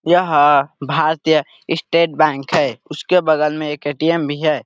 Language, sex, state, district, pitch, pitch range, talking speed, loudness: Hindi, male, Chhattisgarh, Sarguja, 155 Hz, 145-165 Hz, 155 wpm, -16 LUFS